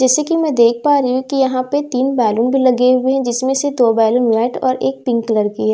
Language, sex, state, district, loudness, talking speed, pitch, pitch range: Hindi, female, Bihar, Katihar, -15 LUFS, 280 wpm, 255 Hz, 235-270 Hz